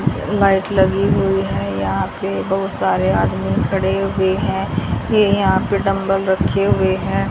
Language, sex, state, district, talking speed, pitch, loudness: Hindi, female, Haryana, Jhajjar, 155 wpm, 190 Hz, -17 LUFS